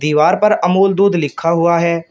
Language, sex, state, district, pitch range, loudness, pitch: Hindi, male, Uttar Pradesh, Shamli, 165-195 Hz, -13 LUFS, 170 Hz